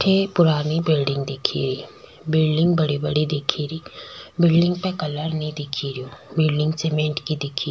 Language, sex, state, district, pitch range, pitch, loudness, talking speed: Rajasthani, female, Rajasthan, Nagaur, 145-160 Hz, 155 Hz, -22 LUFS, 155 wpm